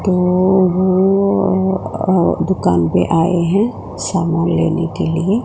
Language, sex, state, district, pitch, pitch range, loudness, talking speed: Hindi, female, Gujarat, Gandhinagar, 185 Hz, 170-190 Hz, -15 LUFS, 130 wpm